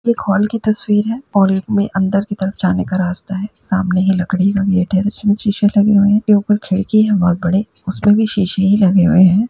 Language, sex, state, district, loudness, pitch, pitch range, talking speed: Hindi, female, Uttar Pradesh, Jalaun, -15 LUFS, 200 Hz, 190-210 Hz, 220 wpm